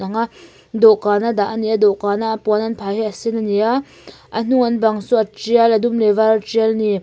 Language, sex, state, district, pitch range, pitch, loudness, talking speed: Mizo, female, Mizoram, Aizawl, 210-230 Hz, 220 Hz, -17 LUFS, 240 wpm